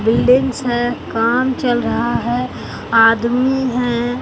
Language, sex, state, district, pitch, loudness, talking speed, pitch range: Hindi, male, Bihar, Katihar, 245 Hz, -16 LUFS, 115 wpm, 235-255 Hz